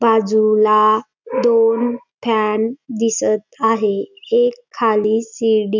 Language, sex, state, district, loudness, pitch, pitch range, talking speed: Marathi, female, Maharashtra, Dhule, -17 LUFS, 225 Hz, 215-240 Hz, 85 wpm